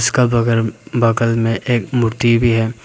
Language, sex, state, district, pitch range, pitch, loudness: Hindi, male, Arunachal Pradesh, Papum Pare, 115-120 Hz, 115 Hz, -16 LUFS